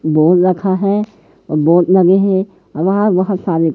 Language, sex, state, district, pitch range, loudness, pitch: Hindi, male, Madhya Pradesh, Katni, 165-195 Hz, -13 LUFS, 185 Hz